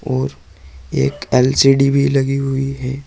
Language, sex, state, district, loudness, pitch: Hindi, male, Uttar Pradesh, Saharanpur, -16 LUFS, 135 Hz